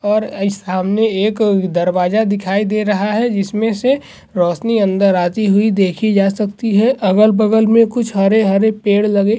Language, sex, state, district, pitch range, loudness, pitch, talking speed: Hindi, male, Maharashtra, Sindhudurg, 195-220 Hz, -14 LUFS, 210 Hz, 165 wpm